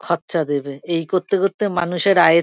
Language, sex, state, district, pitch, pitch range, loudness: Bengali, female, West Bengal, Kolkata, 175 Hz, 165-195 Hz, -19 LUFS